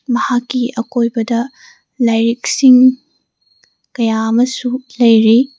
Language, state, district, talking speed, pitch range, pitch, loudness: Manipuri, Manipur, Imphal West, 75 wpm, 230-255 Hz, 245 Hz, -13 LUFS